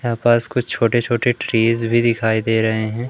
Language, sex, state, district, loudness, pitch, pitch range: Hindi, male, Madhya Pradesh, Umaria, -18 LUFS, 115 Hz, 115-120 Hz